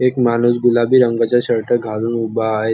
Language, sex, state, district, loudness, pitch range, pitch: Marathi, male, Maharashtra, Nagpur, -16 LUFS, 115-120 Hz, 120 Hz